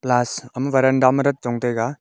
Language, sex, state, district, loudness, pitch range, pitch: Wancho, male, Arunachal Pradesh, Longding, -19 LUFS, 120-130 Hz, 130 Hz